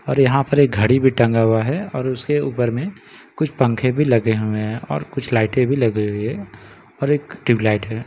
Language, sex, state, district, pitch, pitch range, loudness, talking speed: Hindi, male, Bihar, Katihar, 125 Hz, 110-140 Hz, -19 LUFS, 225 wpm